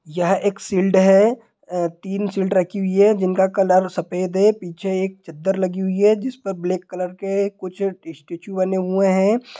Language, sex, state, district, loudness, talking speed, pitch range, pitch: Hindi, male, Bihar, Sitamarhi, -19 LUFS, 195 wpm, 185-200 Hz, 190 Hz